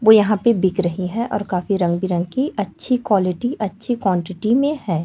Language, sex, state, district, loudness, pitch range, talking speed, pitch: Hindi, female, Chhattisgarh, Raipur, -19 LUFS, 180-235 Hz, 190 wpm, 205 Hz